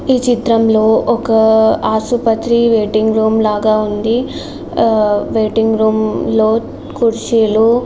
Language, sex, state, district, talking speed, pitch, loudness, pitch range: Telugu, female, Andhra Pradesh, Srikakulam, 100 wpm, 220 Hz, -13 LUFS, 220-230 Hz